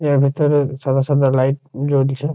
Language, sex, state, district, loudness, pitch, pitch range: Bengali, male, West Bengal, Jhargram, -17 LUFS, 140 Hz, 135-145 Hz